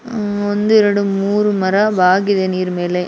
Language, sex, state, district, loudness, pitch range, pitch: Kannada, female, Karnataka, Shimoga, -15 LUFS, 185-210 Hz, 200 Hz